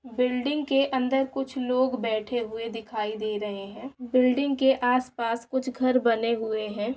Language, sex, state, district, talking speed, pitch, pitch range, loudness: Hindi, female, Bihar, Saran, 180 wpm, 250 Hz, 225-260 Hz, -26 LUFS